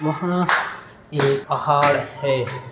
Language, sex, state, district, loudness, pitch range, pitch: Hindi, male, Uttar Pradesh, Etah, -20 LUFS, 135-155 Hz, 145 Hz